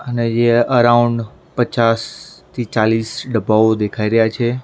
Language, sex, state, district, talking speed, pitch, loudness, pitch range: Gujarati, male, Maharashtra, Mumbai Suburban, 130 wpm, 115 Hz, -16 LUFS, 110-120 Hz